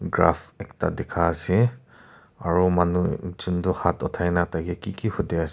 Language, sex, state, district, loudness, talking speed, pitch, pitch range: Nagamese, male, Nagaland, Kohima, -24 LUFS, 185 wpm, 90 Hz, 85-95 Hz